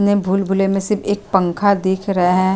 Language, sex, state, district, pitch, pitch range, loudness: Hindi, female, Uttar Pradesh, Jyotiba Phule Nagar, 195 Hz, 190-200 Hz, -17 LUFS